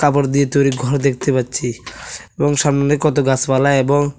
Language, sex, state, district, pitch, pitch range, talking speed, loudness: Bengali, male, Tripura, West Tripura, 140 Hz, 135-145 Hz, 160 wpm, -16 LUFS